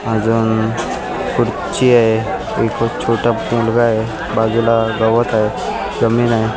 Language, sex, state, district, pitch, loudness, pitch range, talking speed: Marathi, male, Maharashtra, Mumbai Suburban, 115 Hz, -16 LUFS, 110-115 Hz, 110 wpm